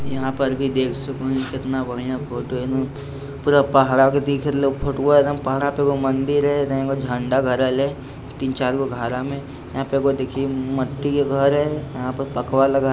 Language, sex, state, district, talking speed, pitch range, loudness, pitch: Hindi, male, Bihar, Lakhisarai, 205 wpm, 130-140 Hz, -21 LUFS, 135 Hz